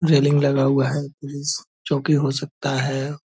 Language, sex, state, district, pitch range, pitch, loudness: Hindi, male, Bihar, Purnia, 135-145 Hz, 140 Hz, -21 LUFS